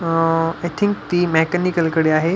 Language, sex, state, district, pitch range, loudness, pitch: Marathi, male, Maharashtra, Pune, 160-175 Hz, -18 LUFS, 165 Hz